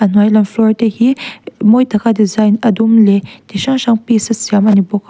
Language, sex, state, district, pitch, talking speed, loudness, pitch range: Mizo, female, Mizoram, Aizawl, 220 Hz, 245 wpm, -12 LUFS, 210-230 Hz